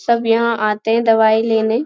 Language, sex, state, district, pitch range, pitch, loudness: Hindi, female, Bihar, Jamui, 220-230 Hz, 225 Hz, -15 LUFS